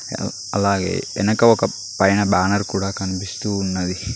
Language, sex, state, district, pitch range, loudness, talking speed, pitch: Telugu, male, Telangana, Mahabubabad, 95-100 Hz, -20 LUFS, 115 wpm, 100 Hz